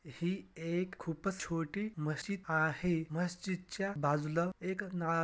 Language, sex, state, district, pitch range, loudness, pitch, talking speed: Marathi, male, Maharashtra, Sindhudurg, 160-185 Hz, -37 LUFS, 175 Hz, 125 wpm